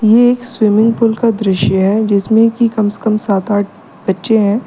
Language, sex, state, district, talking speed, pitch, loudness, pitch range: Hindi, female, Uttar Pradesh, Lalitpur, 205 wpm, 215 Hz, -13 LUFS, 205-230 Hz